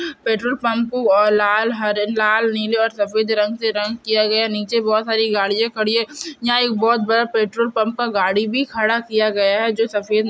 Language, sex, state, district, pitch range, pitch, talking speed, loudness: Hindi, female, Bihar, Saharsa, 215-230 Hz, 220 Hz, 210 wpm, -18 LUFS